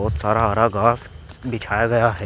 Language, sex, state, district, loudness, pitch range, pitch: Hindi, male, Uttar Pradesh, Shamli, -20 LUFS, 100-115 Hz, 115 Hz